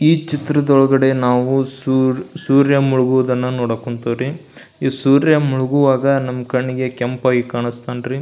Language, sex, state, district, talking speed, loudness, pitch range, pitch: Kannada, male, Karnataka, Belgaum, 140 wpm, -16 LUFS, 125-140 Hz, 130 Hz